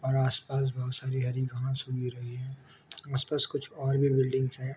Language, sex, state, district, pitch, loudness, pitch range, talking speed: Hindi, male, Jharkhand, Sahebganj, 130 Hz, -31 LUFS, 130-135 Hz, 215 wpm